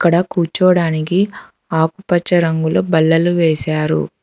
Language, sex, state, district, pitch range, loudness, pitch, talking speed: Telugu, female, Telangana, Hyderabad, 160-175 Hz, -15 LUFS, 165 Hz, 85 wpm